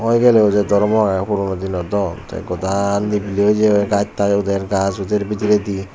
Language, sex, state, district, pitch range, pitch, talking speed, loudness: Chakma, male, Tripura, Unakoti, 95-105 Hz, 100 Hz, 190 wpm, -17 LUFS